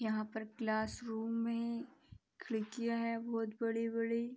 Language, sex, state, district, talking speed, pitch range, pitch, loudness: Hindi, female, Uttar Pradesh, Gorakhpur, 125 wpm, 220-235 Hz, 230 Hz, -39 LUFS